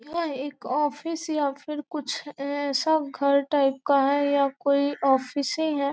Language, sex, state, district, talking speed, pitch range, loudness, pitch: Hindi, female, Bihar, Gopalganj, 160 wpm, 280-300 Hz, -25 LUFS, 285 Hz